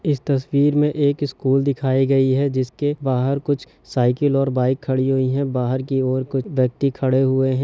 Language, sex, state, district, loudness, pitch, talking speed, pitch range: Hindi, male, Chhattisgarh, Rajnandgaon, -20 LUFS, 135 Hz, 195 wpm, 130-140 Hz